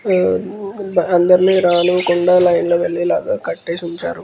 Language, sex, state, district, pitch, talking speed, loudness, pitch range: Telugu, male, Andhra Pradesh, Guntur, 175 Hz, 125 wpm, -15 LUFS, 175-185 Hz